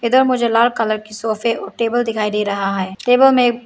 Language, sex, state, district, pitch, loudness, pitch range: Hindi, female, Arunachal Pradesh, Lower Dibang Valley, 230 Hz, -16 LUFS, 215-240 Hz